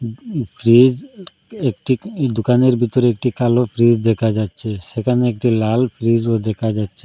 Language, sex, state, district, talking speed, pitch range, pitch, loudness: Bengali, male, Assam, Hailakandi, 130 wpm, 110-125 Hz, 120 Hz, -17 LUFS